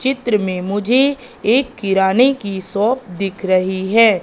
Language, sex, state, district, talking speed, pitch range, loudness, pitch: Hindi, female, Madhya Pradesh, Katni, 140 wpm, 190-250 Hz, -17 LUFS, 205 Hz